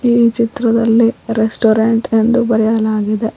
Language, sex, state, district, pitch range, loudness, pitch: Kannada, female, Karnataka, Koppal, 220-230 Hz, -14 LUFS, 225 Hz